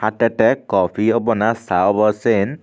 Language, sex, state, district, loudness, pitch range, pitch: Chakma, male, Tripura, Unakoti, -17 LUFS, 105-115 Hz, 110 Hz